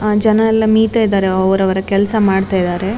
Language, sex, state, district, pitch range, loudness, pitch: Kannada, female, Karnataka, Dakshina Kannada, 190-220 Hz, -14 LUFS, 200 Hz